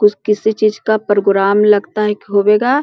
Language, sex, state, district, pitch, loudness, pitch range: Hindi, female, Bihar, Jahanabad, 210 Hz, -14 LUFS, 205-215 Hz